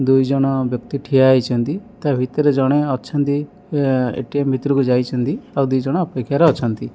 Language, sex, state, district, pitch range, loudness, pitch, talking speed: Odia, male, Odisha, Malkangiri, 130-145 Hz, -18 LUFS, 135 Hz, 130 wpm